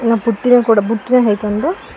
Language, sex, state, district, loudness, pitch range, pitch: Kannada, female, Karnataka, Koppal, -14 LUFS, 215-245 Hz, 230 Hz